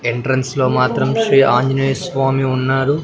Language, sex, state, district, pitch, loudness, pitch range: Telugu, male, Andhra Pradesh, Sri Satya Sai, 135 Hz, -16 LUFS, 130-135 Hz